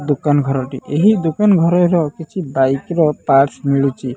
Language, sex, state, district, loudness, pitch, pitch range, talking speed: Odia, male, Odisha, Nuapada, -15 LUFS, 145 Hz, 135-170 Hz, 145 wpm